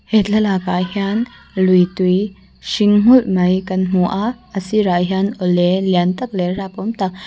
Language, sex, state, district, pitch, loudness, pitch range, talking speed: Mizo, female, Mizoram, Aizawl, 190 Hz, -16 LUFS, 185-205 Hz, 165 wpm